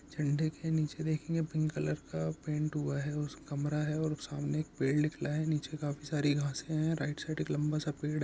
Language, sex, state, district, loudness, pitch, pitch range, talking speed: Hindi, male, Bihar, Saharsa, -35 LUFS, 150 Hz, 145-155 Hz, 195 wpm